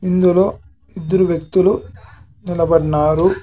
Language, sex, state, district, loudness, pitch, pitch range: Telugu, male, Andhra Pradesh, Sri Satya Sai, -16 LUFS, 170 Hz, 155-185 Hz